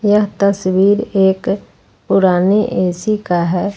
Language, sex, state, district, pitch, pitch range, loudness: Hindi, female, Jharkhand, Ranchi, 195 Hz, 185-205 Hz, -15 LUFS